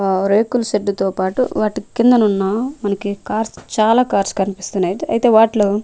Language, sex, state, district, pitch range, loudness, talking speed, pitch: Telugu, female, Andhra Pradesh, Manyam, 195-225 Hz, -17 LUFS, 165 wpm, 210 Hz